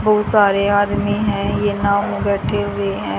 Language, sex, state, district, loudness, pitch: Hindi, female, Haryana, Charkhi Dadri, -17 LUFS, 200 Hz